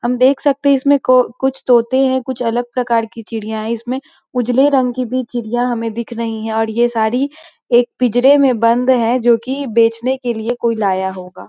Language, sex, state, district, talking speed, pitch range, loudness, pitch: Hindi, female, Bihar, Muzaffarpur, 220 wpm, 230-260 Hz, -16 LUFS, 245 Hz